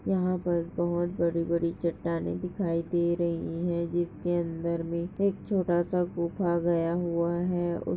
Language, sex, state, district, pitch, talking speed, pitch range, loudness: Hindi, female, Chhattisgarh, Sarguja, 170 Hz, 150 wpm, 170-175 Hz, -29 LUFS